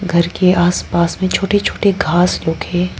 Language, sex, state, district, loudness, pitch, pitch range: Hindi, female, Arunachal Pradesh, Lower Dibang Valley, -15 LUFS, 180 Hz, 170-190 Hz